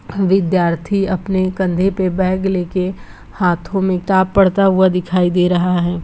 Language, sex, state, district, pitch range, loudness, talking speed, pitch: Hindi, female, Bihar, Gopalganj, 180-190 Hz, -16 LUFS, 150 wpm, 185 Hz